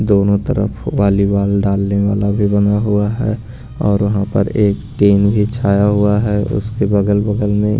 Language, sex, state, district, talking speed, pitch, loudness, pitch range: Hindi, male, Punjab, Pathankot, 175 wpm, 100 Hz, -15 LUFS, 100-105 Hz